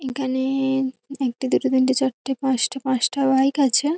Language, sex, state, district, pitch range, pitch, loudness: Bengali, female, West Bengal, North 24 Parganas, 260-270 Hz, 265 Hz, -21 LUFS